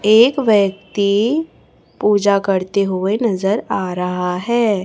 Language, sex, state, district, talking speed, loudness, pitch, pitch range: Hindi, female, Chhattisgarh, Raipur, 110 wpm, -17 LUFS, 200 Hz, 190-220 Hz